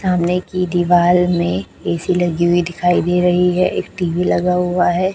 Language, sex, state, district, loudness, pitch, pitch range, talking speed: Hindi, female, Chhattisgarh, Raipur, -16 LUFS, 175 Hz, 175-180 Hz, 185 wpm